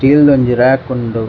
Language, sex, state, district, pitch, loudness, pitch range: Tulu, male, Karnataka, Dakshina Kannada, 130 Hz, -11 LUFS, 120-135 Hz